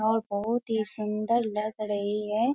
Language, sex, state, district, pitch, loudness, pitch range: Hindi, female, Bihar, Kishanganj, 215 Hz, -29 LUFS, 210-225 Hz